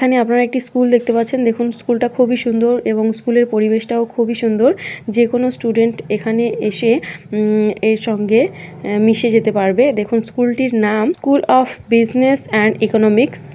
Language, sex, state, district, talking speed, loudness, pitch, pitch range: Bengali, female, West Bengal, North 24 Parganas, 170 wpm, -15 LUFS, 230 Hz, 220-245 Hz